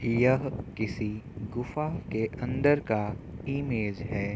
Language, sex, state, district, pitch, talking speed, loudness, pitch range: Hindi, male, Bihar, Gopalganj, 115 Hz, 110 wpm, -30 LUFS, 105-130 Hz